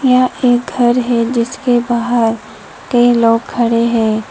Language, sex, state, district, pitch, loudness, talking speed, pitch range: Hindi, female, West Bengal, Alipurduar, 240 Hz, -13 LUFS, 140 wpm, 230-245 Hz